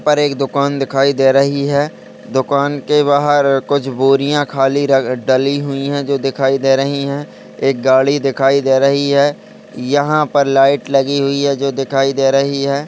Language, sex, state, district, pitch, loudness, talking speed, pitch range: Hindi, male, Uttar Pradesh, Ghazipur, 140 Hz, -14 LUFS, 180 wpm, 135-140 Hz